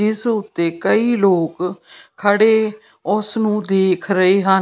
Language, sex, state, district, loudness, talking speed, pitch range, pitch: Punjabi, female, Punjab, Pathankot, -17 LUFS, 130 wpm, 185-215 Hz, 200 Hz